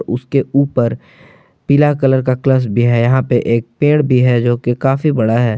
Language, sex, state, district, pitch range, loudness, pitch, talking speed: Hindi, male, Jharkhand, Palamu, 120-140 Hz, -14 LUFS, 130 Hz, 195 wpm